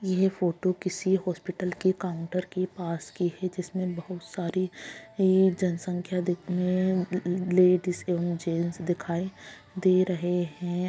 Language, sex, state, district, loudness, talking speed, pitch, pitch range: Magahi, female, Bihar, Gaya, -28 LUFS, 130 wpm, 180 Hz, 175-185 Hz